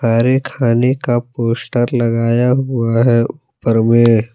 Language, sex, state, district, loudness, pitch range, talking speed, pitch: Hindi, male, Jharkhand, Palamu, -15 LUFS, 115-125 Hz, 110 wpm, 120 Hz